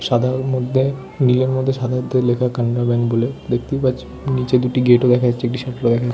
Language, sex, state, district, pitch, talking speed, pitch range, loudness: Bengali, male, West Bengal, Malda, 125 Hz, 225 wpm, 120-130 Hz, -18 LUFS